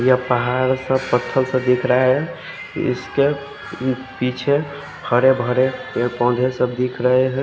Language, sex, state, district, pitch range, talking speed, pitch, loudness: Hindi, male, Odisha, Khordha, 125-130 Hz, 135 wpm, 130 Hz, -19 LUFS